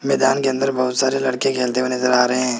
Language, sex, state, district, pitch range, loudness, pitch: Hindi, male, Rajasthan, Jaipur, 125-135 Hz, -18 LUFS, 130 Hz